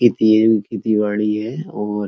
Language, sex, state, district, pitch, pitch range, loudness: Hindi, male, Uttar Pradesh, Etah, 110 Hz, 105-110 Hz, -18 LUFS